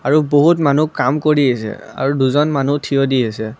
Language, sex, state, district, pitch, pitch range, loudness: Assamese, male, Assam, Kamrup Metropolitan, 140 Hz, 130-150 Hz, -15 LUFS